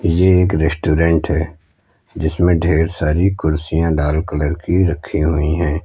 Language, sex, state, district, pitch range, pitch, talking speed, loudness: Hindi, male, Uttar Pradesh, Lucknow, 80-90 Hz, 80 Hz, 145 wpm, -16 LUFS